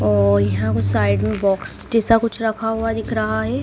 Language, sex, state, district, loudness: Hindi, female, Madhya Pradesh, Dhar, -19 LUFS